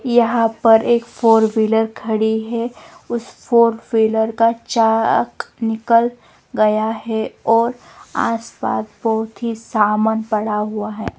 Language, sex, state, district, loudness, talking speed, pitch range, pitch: Hindi, female, Himachal Pradesh, Shimla, -18 LUFS, 125 wpm, 220-230 Hz, 225 Hz